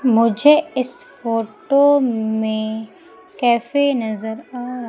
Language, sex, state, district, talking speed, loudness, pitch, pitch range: Hindi, female, Madhya Pradesh, Umaria, 100 wpm, -18 LUFS, 235 Hz, 220-260 Hz